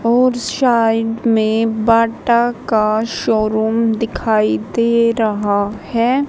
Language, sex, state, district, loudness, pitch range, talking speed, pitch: Hindi, female, Haryana, Jhajjar, -16 LUFS, 220-235 Hz, 95 wpm, 225 Hz